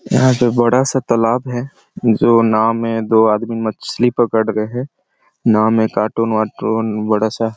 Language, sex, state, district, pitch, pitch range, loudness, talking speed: Hindi, male, Chhattisgarh, Sarguja, 115 Hz, 110-120 Hz, -16 LUFS, 165 wpm